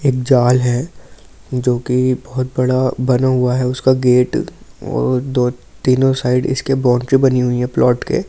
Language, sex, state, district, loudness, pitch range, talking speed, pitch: Hindi, male, Delhi, New Delhi, -16 LUFS, 125-130 Hz, 165 wpm, 125 Hz